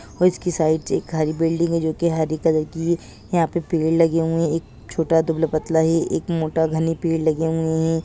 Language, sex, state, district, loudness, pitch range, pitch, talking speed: Hindi, female, Rajasthan, Nagaur, -21 LUFS, 160-165 Hz, 160 Hz, 240 wpm